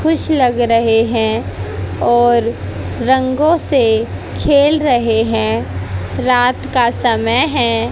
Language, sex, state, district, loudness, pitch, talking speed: Hindi, female, Haryana, Jhajjar, -14 LUFS, 235 Hz, 105 wpm